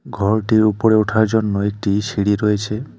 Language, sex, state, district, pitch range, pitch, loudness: Bengali, male, West Bengal, Alipurduar, 105-110 Hz, 105 Hz, -17 LUFS